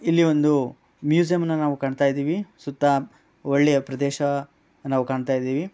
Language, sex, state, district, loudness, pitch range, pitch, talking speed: Kannada, male, Karnataka, Bellary, -23 LUFS, 140-155 Hz, 140 Hz, 135 wpm